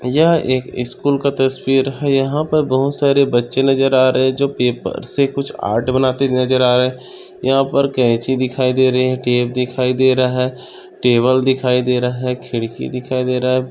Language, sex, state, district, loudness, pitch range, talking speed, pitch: Hindi, male, Maharashtra, Solapur, -16 LUFS, 125-135 Hz, 190 wpm, 130 Hz